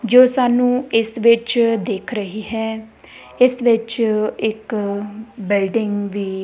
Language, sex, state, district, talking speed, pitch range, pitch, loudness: Punjabi, female, Punjab, Kapurthala, 120 wpm, 210-235 Hz, 225 Hz, -18 LUFS